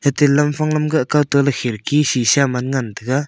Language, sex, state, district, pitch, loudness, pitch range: Wancho, male, Arunachal Pradesh, Longding, 140 Hz, -17 LUFS, 130-150 Hz